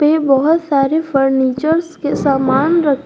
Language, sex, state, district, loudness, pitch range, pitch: Hindi, female, Jharkhand, Garhwa, -14 LUFS, 270-320 Hz, 285 Hz